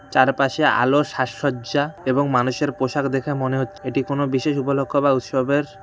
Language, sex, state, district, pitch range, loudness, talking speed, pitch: Bengali, male, West Bengal, Cooch Behar, 130-145 Hz, -21 LUFS, 175 wpm, 135 Hz